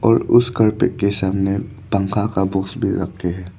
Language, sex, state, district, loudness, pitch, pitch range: Hindi, male, Arunachal Pradesh, Lower Dibang Valley, -19 LUFS, 100 Hz, 95-110 Hz